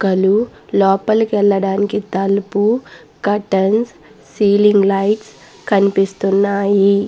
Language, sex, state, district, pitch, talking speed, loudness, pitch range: Telugu, female, Andhra Pradesh, Guntur, 200 Hz, 70 wpm, -15 LUFS, 195-210 Hz